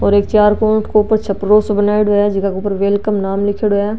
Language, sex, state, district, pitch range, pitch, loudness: Marwari, female, Rajasthan, Nagaur, 200-210 Hz, 205 Hz, -14 LUFS